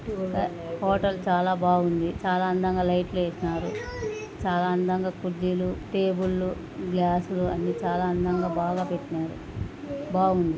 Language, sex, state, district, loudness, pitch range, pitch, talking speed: Telugu, female, Andhra Pradesh, Anantapur, -27 LUFS, 175-185 Hz, 180 Hz, 115 wpm